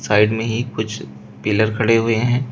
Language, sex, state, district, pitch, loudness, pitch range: Hindi, male, Uttar Pradesh, Shamli, 110 Hz, -18 LUFS, 105-115 Hz